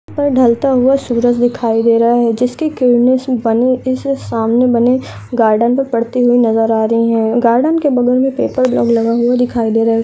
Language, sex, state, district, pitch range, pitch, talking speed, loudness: Hindi, female, Uttarakhand, Tehri Garhwal, 230-255 Hz, 245 Hz, 185 wpm, -13 LUFS